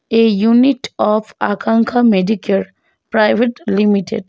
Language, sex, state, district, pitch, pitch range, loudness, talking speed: Bengali, female, West Bengal, Jalpaiguri, 220 Hz, 205-235 Hz, -14 LUFS, 110 wpm